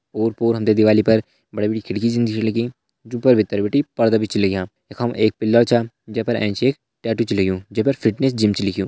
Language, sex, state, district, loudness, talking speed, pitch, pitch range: Hindi, male, Uttarakhand, Uttarkashi, -19 LUFS, 255 wpm, 110 Hz, 105-120 Hz